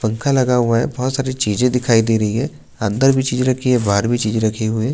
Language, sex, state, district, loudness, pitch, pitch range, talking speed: Hindi, male, Uttarakhand, Tehri Garhwal, -17 LUFS, 120 Hz, 110-130 Hz, 255 wpm